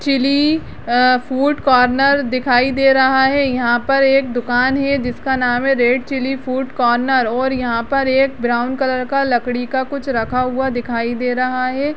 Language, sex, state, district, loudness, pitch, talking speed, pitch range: Hindi, female, Bihar, Jahanabad, -16 LUFS, 260 Hz, 180 wpm, 245-270 Hz